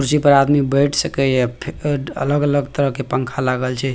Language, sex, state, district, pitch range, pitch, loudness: Maithili, male, Bihar, Purnia, 130-145 Hz, 135 Hz, -18 LUFS